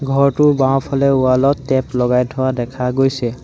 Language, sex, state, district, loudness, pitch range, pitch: Assamese, male, Assam, Sonitpur, -16 LUFS, 125-135 Hz, 130 Hz